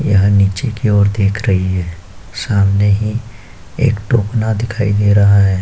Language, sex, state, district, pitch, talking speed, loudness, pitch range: Hindi, male, Uttar Pradesh, Jyotiba Phule Nagar, 100 Hz, 160 wpm, -14 LUFS, 95-110 Hz